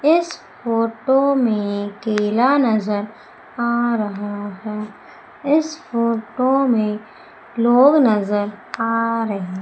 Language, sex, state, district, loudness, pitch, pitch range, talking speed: Hindi, female, Madhya Pradesh, Umaria, -19 LUFS, 230 Hz, 210-255 Hz, 95 wpm